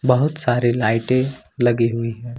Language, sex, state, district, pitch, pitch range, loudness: Hindi, male, Jharkhand, Ranchi, 120 Hz, 115-130 Hz, -20 LUFS